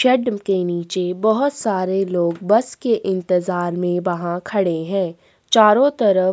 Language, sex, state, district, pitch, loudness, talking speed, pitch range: Hindi, female, Chhattisgarh, Sukma, 190 Hz, -19 LUFS, 140 wpm, 180-220 Hz